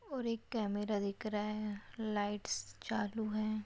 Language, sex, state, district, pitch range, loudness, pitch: Hindi, female, Maharashtra, Nagpur, 205-220 Hz, -39 LUFS, 210 Hz